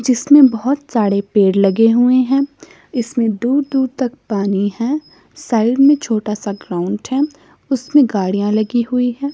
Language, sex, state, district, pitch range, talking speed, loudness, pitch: Hindi, female, Himachal Pradesh, Shimla, 210-275 Hz, 155 wpm, -15 LUFS, 240 Hz